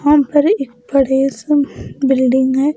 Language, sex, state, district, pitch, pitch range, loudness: Hindi, female, Bihar, Patna, 275 Hz, 265-290 Hz, -15 LUFS